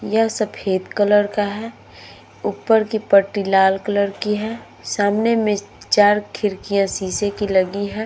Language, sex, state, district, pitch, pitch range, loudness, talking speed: Hindi, female, Uttar Pradesh, Muzaffarnagar, 205 Hz, 195-210 Hz, -19 LUFS, 150 wpm